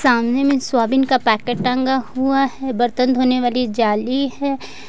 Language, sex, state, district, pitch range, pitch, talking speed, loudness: Hindi, female, Jharkhand, Ranchi, 245-265 Hz, 255 Hz, 160 wpm, -18 LUFS